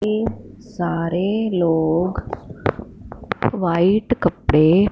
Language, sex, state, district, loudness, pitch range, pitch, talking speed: Hindi, female, Punjab, Fazilka, -20 LUFS, 170-210 Hz, 180 Hz, 60 wpm